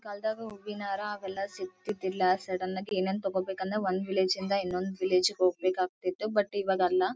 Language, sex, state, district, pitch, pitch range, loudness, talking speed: Kannada, female, Karnataka, Bellary, 190 Hz, 185-205 Hz, -31 LUFS, 165 wpm